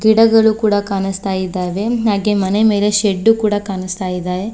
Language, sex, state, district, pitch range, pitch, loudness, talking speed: Kannada, female, Karnataka, Koppal, 190-215 Hz, 205 Hz, -15 LUFS, 145 wpm